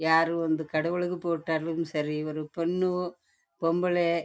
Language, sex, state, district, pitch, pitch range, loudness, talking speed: Tamil, female, Karnataka, Chamarajanagar, 165 Hz, 160-175 Hz, -29 LUFS, 70 wpm